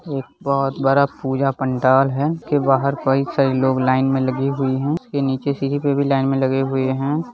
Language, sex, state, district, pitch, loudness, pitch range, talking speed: Hindi, male, Bihar, Lakhisarai, 135 Hz, -19 LUFS, 135-140 Hz, 205 wpm